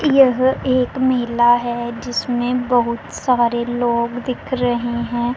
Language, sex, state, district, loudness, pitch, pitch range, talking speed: Hindi, female, Punjab, Pathankot, -18 LUFS, 245 Hz, 240-255 Hz, 125 wpm